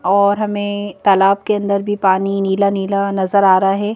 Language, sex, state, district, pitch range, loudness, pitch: Hindi, female, Madhya Pradesh, Bhopal, 195-205 Hz, -15 LUFS, 200 Hz